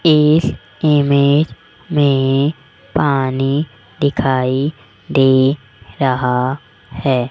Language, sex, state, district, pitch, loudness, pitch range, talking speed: Hindi, female, Rajasthan, Jaipur, 135 Hz, -16 LUFS, 125-145 Hz, 65 wpm